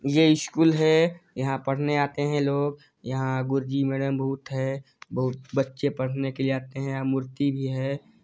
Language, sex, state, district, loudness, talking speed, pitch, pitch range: Hindi, male, Chhattisgarh, Sarguja, -26 LUFS, 165 wpm, 135 Hz, 135-145 Hz